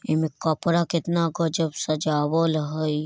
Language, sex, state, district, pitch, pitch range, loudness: Bajjika, male, Bihar, Vaishali, 160 Hz, 155-165 Hz, -24 LUFS